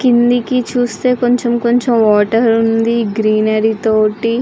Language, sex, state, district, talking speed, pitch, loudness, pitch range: Telugu, female, Andhra Pradesh, Srikakulam, 120 wpm, 230 Hz, -13 LUFS, 220-245 Hz